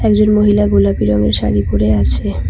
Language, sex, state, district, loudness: Bengali, female, West Bengal, Cooch Behar, -13 LUFS